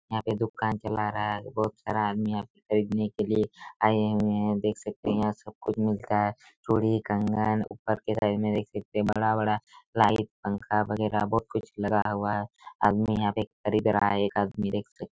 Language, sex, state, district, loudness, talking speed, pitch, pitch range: Hindi, male, Chhattisgarh, Raigarh, -28 LUFS, 205 wpm, 105 Hz, 105-110 Hz